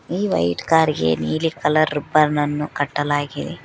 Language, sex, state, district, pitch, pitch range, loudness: Kannada, female, Karnataka, Koppal, 150 Hz, 145-155 Hz, -20 LUFS